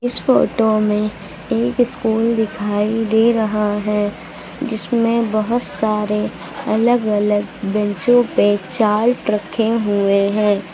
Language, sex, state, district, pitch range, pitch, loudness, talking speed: Hindi, female, Uttar Pradesh, Lucknow, 210-230 Hz, 215 Hz, -17 LUFS, 110 wpm